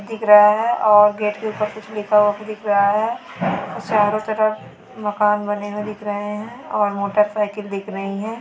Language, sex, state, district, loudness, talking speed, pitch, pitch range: Hindi, female, West Bengal, Dakshin Dinajpur, -19 LUFS, 180 wpm, 210 Hz, 205-215 Hz